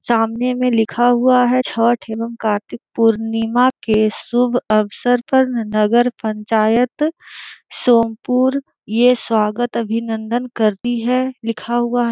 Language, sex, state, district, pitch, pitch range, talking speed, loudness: Hindi, female, Jharkhand, Sahebganj, 235 Hz, 225-250 Hz, 120 wpm, -17 LUFS